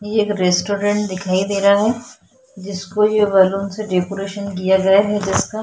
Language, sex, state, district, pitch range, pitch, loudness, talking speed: Hindi, female, Chhattisgarh, Sukma, 190-210 Hz, 200 Hz, -17 LUFS, 170 wpm